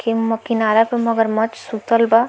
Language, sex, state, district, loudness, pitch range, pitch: Bhojpuri, female, Bihar, Muzaffarpur, -18 LUFS, 225-230 Hz, 225 Hz